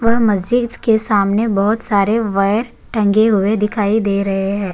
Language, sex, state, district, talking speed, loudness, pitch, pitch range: Hindi, male, Uttarakhand, Tehri Garhwal, 165 wpm, -16 LUFS, 210 Hz, 200-225 Hz